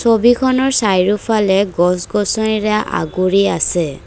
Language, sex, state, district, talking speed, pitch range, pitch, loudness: Assamese, female, Assam, Kamrup Metropolitan, 90 wpm, 185-220 Hz, 205 Hz, -15 LUFS